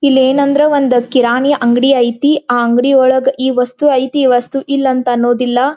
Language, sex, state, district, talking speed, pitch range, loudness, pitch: Kannada, female, Karnataka, Belgaum, 200 wpm, 245-275 Hz, -12 LUFS, 260 Hz